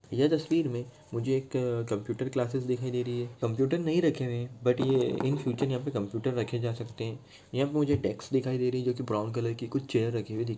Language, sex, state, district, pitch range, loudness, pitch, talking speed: Hindi, male, Maharashtra, Nagpur, 120-135 Hz, -30 LUFS, 125 Hz, 230 wpm